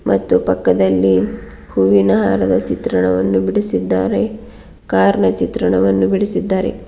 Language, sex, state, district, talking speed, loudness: Kannada, female, Karnataka, Bidar, 80 wpm, -15 LUFS